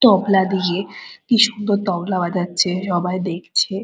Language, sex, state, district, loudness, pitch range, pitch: Bengali, female, West Bengal, Purulia, -19 LUFS, 180-205 Hz, 190 Hz